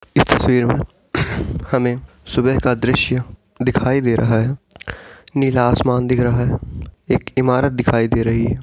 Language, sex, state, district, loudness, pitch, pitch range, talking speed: Hindi, male, Uttar Pradesh, Etah, -18 LUFS, 125 Hz, 115-130 Hz, 155 wpm